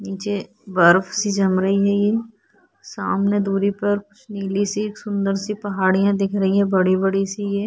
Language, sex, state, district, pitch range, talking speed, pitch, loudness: Hindi, female, Uttarakhand, Tehri Garhwal, 195-205 Hz, 170 wpm, 200 Hz, -20 LUFS